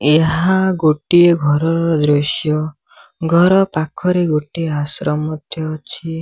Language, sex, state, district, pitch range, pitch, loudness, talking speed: Odia, male, Odisha, Sambalpur, 150-175 Hz, 160 Hz, -16 LUFS, 95 wpm